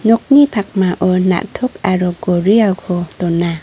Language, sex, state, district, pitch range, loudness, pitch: Garo, female, Meghalaya, North Garo Hills, 180-220 Hz, -14 LUFS, 185 Hz